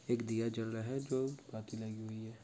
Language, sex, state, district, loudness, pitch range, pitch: Hindi, male, Bihar, Jamui, -40 LUFS, 110-125 Hz, 115 Hz